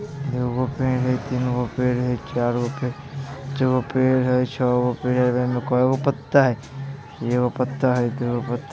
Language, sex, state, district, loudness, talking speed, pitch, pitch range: Bajjika, male, Bihar, Vaishali, -22 LUFS, 215 wpm, 125 Hz, 125-135 Hz